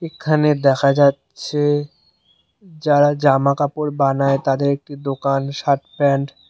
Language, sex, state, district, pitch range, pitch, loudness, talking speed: Bengali, male, West Bengal, Cooch Behar, 140-145 Hz, 140 Hz, -18 LUFS, 120 wpm